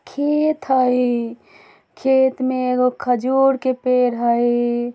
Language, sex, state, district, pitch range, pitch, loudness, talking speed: Bajjika, female, Bihar, Vaishali, 240-265 Hz, 250 Hz, -18 LUFS, 110 wpm